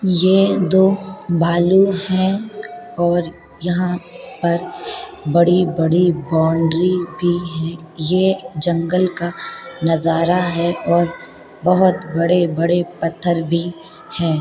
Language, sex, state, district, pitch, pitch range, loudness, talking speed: Hindi, female, Uttar Pradesh, Hamirpur, 175 Hz, 170-185 Hz, -17 LUFS, 90 wpm